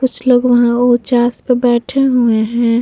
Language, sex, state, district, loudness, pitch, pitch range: Hindi, female, Bihar, Vaishali, -13 LUFS, 245 Hz, 240-250 Hz